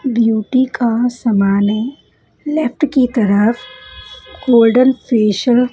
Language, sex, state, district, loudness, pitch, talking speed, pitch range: Hindi, female, Punjab, Fazilka, -14 LUFS, 240 Hz, 105 wpm, 220-255 Hz